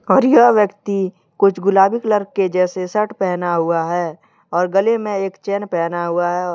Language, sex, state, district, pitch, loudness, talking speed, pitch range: Hindi, male, Jharkhand, Deoghar, 195 Hz, -17 LUFS, 185 wpm, 175-205 Hz